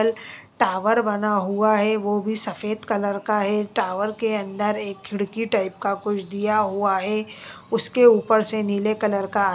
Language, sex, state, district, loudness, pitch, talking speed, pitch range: Hindi, female, Andhra Pradesh, Anantapur, -22 LUFS, 210 Hz, 155 wpm, 200-215 Hz